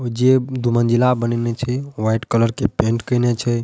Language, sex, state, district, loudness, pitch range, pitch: Maithili, male, Bihar, Madhepura, -18 LUFS, 115-125 Hz, 120 Hz